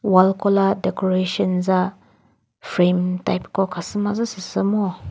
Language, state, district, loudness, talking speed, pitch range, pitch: Chakhesang, Nagaland, Dimapur, -20 LUFS, 140 wpm, 185-200 Hz, 190 Hz